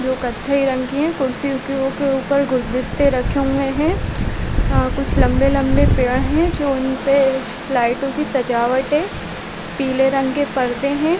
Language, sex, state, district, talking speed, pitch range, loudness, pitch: Hindi, female, Chhattisgarh, Bastar, 155 wpm, 260-280 Hz, -18 LUFS, 270 Hz